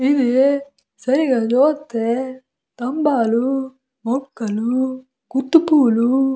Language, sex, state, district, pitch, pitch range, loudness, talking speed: Telugu, female, Andhra Pradesh, Visakhapatnam, 260 Hz, 245-275 Hz, -18 LUFS, 75 wpm